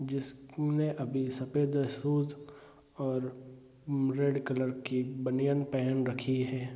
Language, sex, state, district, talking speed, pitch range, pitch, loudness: Hindi, male, Bihar, Gopalganj, 125 wpm, 130-140 Hz, 135 Hz, -32 LUFS